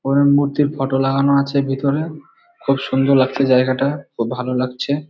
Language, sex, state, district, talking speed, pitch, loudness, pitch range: Bengali, male, West Bengal, Malda, 155 wpm, 135 Hz, -18 LUFS, 135-140 Hz